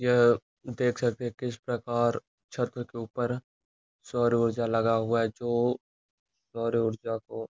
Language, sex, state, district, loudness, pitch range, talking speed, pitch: Hindi, male, Uttar Pradesh, Gorakhpur, -29 LUFS, 115-120 Hz, 150 wpm, 120 Hz